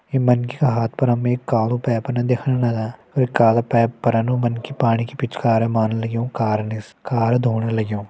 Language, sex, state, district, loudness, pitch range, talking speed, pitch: Garhwali, male, Uttarakhand, Uttarkashi, -20 LUFS, 115-125 Hz, 200 wpm, 120 Hz